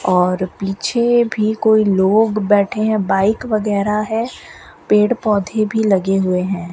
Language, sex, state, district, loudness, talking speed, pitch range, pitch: Hindi, female, Rajasthan, Bikaner, -16 LUFS, 140 wpm, 195-220 Hz, 210 Hz